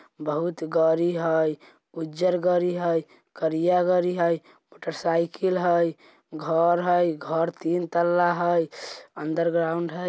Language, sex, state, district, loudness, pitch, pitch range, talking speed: Bajjika, male, Bihar, Vaishali, -24 LUFS, 170 Hz, 160-175 Hz, 125 wpm